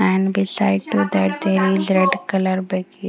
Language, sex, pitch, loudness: English, female, 185 Hz, -19 LUFS